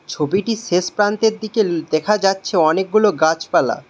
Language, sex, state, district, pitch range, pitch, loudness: Bengali, male, West Bengal, Alipurduar, 170-215 Hz, 195 Hz, -17 LUFS